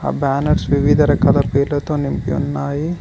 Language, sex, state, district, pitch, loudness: Telugu, male, Telangana, Mahabubabad, 140 Hz, -17 LUFS